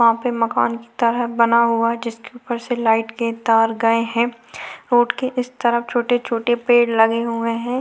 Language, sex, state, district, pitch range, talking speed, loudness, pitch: Hindi, female, Maharashtra, Chandrapur, 230-240 Hz, 200 wpm, -19 LUFS, 235 Hz